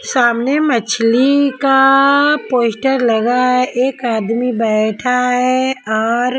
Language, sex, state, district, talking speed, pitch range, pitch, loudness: Hindi, female, Punjab, Kapurthala, 105 wpm, 235-270 Hz, 250 Hz, -14 LUFS